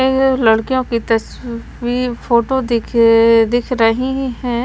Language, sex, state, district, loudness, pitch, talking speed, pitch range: Hindi, female, Maharashtra, Washim, -15 LUFS, 240 Hz, 130 wpm, 230-255 Hz